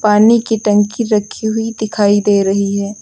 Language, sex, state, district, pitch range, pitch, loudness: Hindi, female, Uttar Pradesh, Lucknow, 205-220 Hz, 210 Hz, -14 LUFS